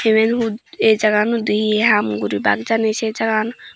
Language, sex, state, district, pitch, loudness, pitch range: Chakma, female, Tripura, Dhalai, 220 Hz, -17 LUFS, 210-225 Hz